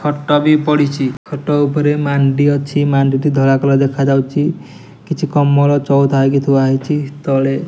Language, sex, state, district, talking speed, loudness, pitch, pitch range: Odia, male, Odisha, Nuapada, 115 wpm, -14 LUFS, 145 Hz, 135-150 Hz